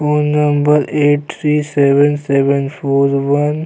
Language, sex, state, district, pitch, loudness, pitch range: Hindi, male, Chhattisgarh, Kabirdham, 145 Hz, -14 LUFS, 140-150 Hz